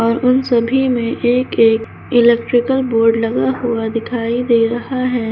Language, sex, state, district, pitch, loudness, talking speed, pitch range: Hindi, female, Uttar Pradesh, Lucknow, 235 Hz, -15 LUFS, 145 wpm, 230-250 Hz